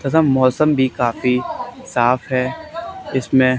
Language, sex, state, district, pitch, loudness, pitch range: Hindi, male, Haryana, Charkhi Dadri, 130 Hz, -18 LUFS, 125-150 Hz